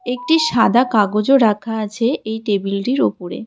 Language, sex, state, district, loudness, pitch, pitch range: Bengali, female, West Bengal, Cooch Behar, -17 LUFS, 230 Hz, 210-250 Hz